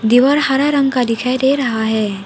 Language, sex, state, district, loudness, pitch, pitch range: Hindi, female, Arunachal Pradesh, Papum Pare, -15 LUFS, 250 Hz, 225-270 Hz